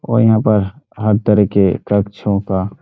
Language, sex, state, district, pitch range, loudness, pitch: Hindi, male, Chhattisgarh, Bastar, 100-110 Hz, -15 LUFS, 105 Hz